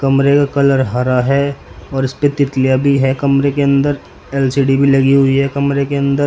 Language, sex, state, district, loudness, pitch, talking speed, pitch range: Hindi, male, Uttar Pradesh, Saharanpur, -14 LUFS, 140 Hz, 200 wpm, 135-140 Hz